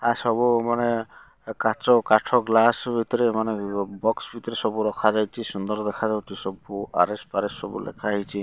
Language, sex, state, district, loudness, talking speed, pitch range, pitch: Odia, male, Odisha, Malkangiri, -24 LUFS, 155 wpm, 105-115 Hz, 110 Hz